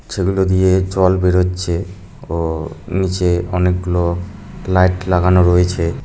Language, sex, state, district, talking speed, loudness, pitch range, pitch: Bengali, male, West Bengal, Cooch Behar, 100 wpm, -16 LUFS, 90-95 Hz, 90 Hz